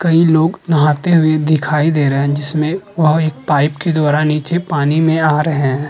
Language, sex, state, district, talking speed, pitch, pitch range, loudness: Hindi, male, Uttar Pradesh, Muzaffarnagar, 205 wpm, 155 Hz, 150-160 Hz, -14 LUFS